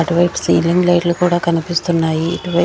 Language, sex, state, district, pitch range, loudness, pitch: Telugu, female, Andhra Pradesh, Sri Satya Sai, 170-175 Hz, -15 LUFS, 170 Hz